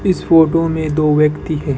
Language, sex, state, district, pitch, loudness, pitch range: Hindi, male, Rajasthan, Bikaner, 155 Hz, -14 LUFS, 150-165 Hz